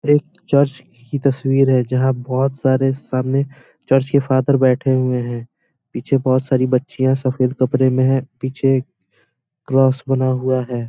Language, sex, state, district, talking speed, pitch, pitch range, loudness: Hindi, male, Bihar, Muzaffarpur, 160 wpm, 130 Hz, 130-135 Hz, -18 LUFS